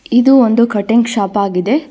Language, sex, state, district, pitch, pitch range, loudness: Kannada, female, Karnataka, Bangalore, 235 Hz, 205-260 Hz, -12 LUFS